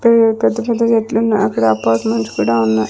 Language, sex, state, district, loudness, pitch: Telugu, female, Andhra Pradesh, Sri Satya Sai, -15 LUFS, 160 Hz